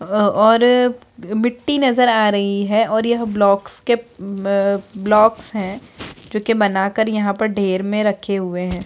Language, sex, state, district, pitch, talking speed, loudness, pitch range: Hindi, female, Bihar, Muzaffarpur, 210 Hz, 170 wpm, -17 LUFS, 200-225 Hz